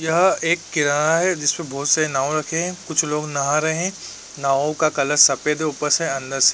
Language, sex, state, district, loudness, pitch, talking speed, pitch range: Hindi, male, Uttar Pradesh, Varanasi, -19 LUFS, 150 Hz, 230 wpm, 140-165 Hz